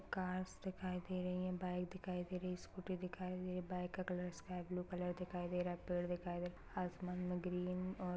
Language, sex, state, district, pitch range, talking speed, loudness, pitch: Hindi, male, Maharashtra, Dhule, 180-185 Hz, 240 wpm, -45 LUFS, 180 Hz